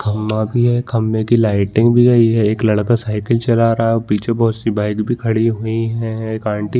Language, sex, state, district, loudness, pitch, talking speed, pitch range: Hindi, male, Chhattisgarh, Balrampur, -16 LUFS, 110 Hz, 230 wpm, 110-115 Hz